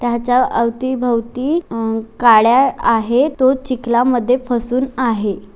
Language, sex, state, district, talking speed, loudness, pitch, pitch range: Marathi, female, Maharashtra, Chandrapur, 110 wpm, -16 LUFS, 245 Hz, 230-255 Hz